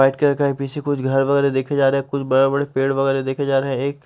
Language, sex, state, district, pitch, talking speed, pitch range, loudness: Hindi, male, Punjab, Fazilka, 135 Hz, 325 wpm, 135-140 Hz, -19 LUFS